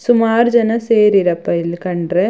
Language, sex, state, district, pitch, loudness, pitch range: Kannada, female, Karnataka, Shimoga, 210 Hz, -14 LUFS, 175-230 Hz